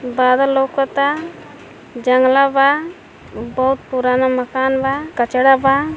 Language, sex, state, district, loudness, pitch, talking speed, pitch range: Hindi, female, Uttar Pradesh, Gorakhpur, -16 LUFS, 270 Hz, 100 wpm, 255-275 Hz